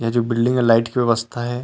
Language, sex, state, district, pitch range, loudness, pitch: Chhattisgarhi, male, Chhattisgarh, Rajnandgaon, 115-120 Hz, -18 LUFS, 120 Hz